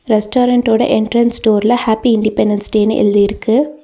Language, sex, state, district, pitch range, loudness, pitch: Tamil, female, Tamil Nadu, Nilgiris, 215-245 Hz, -13 LUFS, 225 Hz